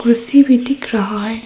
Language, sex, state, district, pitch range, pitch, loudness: Hindi, female, Arunachal Pradesh, Papum Pare, 220-265 Hz, 235 Hz, -13 LUFS